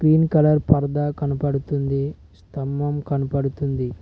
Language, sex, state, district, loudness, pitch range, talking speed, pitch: Telugu, male, Telangana, Mahabubabad, -22 LUFS, 135-145 Hz, 90 wpm, 140 Hz